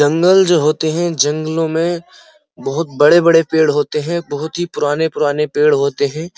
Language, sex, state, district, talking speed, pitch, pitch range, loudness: Hindi, male, Uttar Pradesh, Muzaffarnagar, 170 wpm, 160 Hz, 150-175 Hz, -15 LUFS